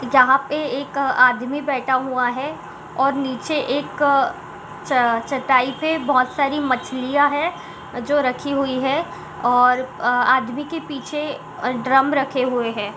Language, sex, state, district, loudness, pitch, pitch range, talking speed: Hindi, female, Chhattisgarh, Balrampur, -20 LUFS, 265 Hz, 250-285 Hz, 150 wpm